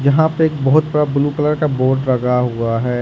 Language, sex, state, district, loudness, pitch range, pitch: Hindi, male, Jharkhand, Ranchi, -16 LUFS, 125-150 Hz, 140 Hz